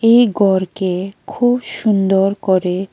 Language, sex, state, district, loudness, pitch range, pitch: Bengali, female, Tripura, West Tripura, -16 LUFS, 190-225 Hz, 195 Hz